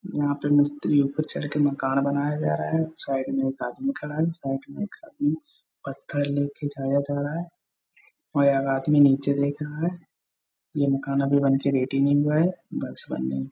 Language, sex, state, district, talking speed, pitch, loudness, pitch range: Hindi, male, Bihar, Supaul, 210 wpm, 145 Hz, -25 LUFS, 135-150 Hz